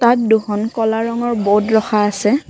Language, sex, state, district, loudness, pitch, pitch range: Assamese, female, Assam, Kamrup Metropolitan, -16 LUFS, 220 Hz, 210-235 Hz